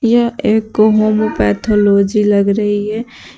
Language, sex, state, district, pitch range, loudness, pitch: Hindi, female, Uttar Pradesh, Shamli, 205-220 Hz, -13 LUFS, 215 Hz